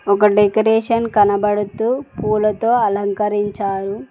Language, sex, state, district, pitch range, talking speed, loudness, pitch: Telugu, female, Telangana, Mahabubabad, 205-220 Hz, 75 wpm, -17 LUFS, 210 Hz